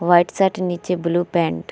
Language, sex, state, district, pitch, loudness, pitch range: Hindi, female, Bihar, Vaishali, 175 Hz, -19 LUFS, 170-180 Hz